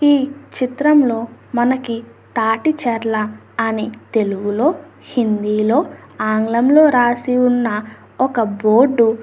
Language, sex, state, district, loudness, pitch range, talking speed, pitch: Telugu, female, Andhra Pradesh, Anantapur, -17 LUFS, 220-260 Hz, 85 wpm, 235 Hz